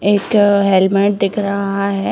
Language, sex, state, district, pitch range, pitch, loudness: Hindi, female, Uttarakhand, Uttarkashi, 195-205 Hz, 200 Hz, -14 LUFS